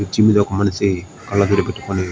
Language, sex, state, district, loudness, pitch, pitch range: Telugu, male, Andhra Pradesh, Srikakulam, -18 LUFS, 100 Hz, 95-105 Hz